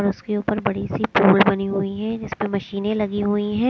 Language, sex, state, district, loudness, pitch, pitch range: Hindi, female, Maharashtra, Mumbai Suburban, -21 LUFS, 205 Hz, 200-210 Hz